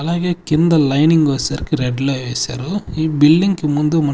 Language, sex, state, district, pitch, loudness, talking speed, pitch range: Telugu, male, Andhra Pradesh, Sri Satya Sai, 155 Hz, -16 LUFS, 175 wpm, 140-165 Hz